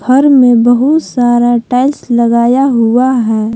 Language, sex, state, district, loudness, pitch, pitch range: Hindi, female, Jharkhand, Palamu, -9 LUFS, 245 Hz, 235-260 Hz